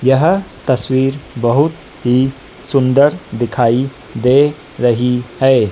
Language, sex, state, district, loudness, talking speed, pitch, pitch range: Hindi, female, Madhya Pradesh, Dhar, -15 LUFS, 95 wpm, 130 Hz, 125-145 Hz